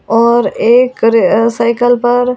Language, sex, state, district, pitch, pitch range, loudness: Hindi, female, Delhi, New Delhi, 235 Hz, 230-245 Hz, -10 LUFS